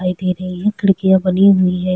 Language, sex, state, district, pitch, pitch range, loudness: Hindi, female, Chhattisgarh, Sukma, 185 Hz, 185-195 Hz, -15 LUFS